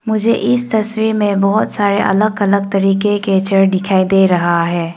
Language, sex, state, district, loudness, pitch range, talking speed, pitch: Hindi, female, Arunachal Pradesh, Longding, -14 LUFS, 195-215 Hz, 180 wpm, 200 Hz